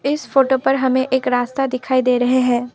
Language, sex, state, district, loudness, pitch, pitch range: Hindi, female, Assam, Kamrup Metropolitan, -17 LUFS, 260 Hz, 250-270 Hz